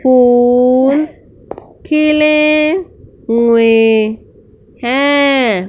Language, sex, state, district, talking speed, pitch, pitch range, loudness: Hindi, female, Punjab, Fazilka, 40 wpm, 260 Hz, 230-305 Hz, -11 LUFS